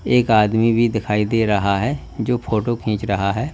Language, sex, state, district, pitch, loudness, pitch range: Hindi, male, Uttar Pradesh, Lalitpur, 110 Hz, -19 LUFS, 105-120 Hz